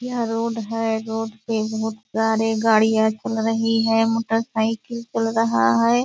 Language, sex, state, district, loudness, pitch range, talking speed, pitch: Hindi, female, Bihar, Purnia, -21 LUFS, 220-225 Hz, 160 wpm, 225 Hz